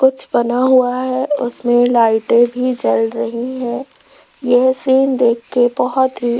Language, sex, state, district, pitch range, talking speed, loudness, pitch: Hindi, female, Rajasthan, Jaipur, 240-260 Hz, 160 wpm, -15 LUFS, 245 Hz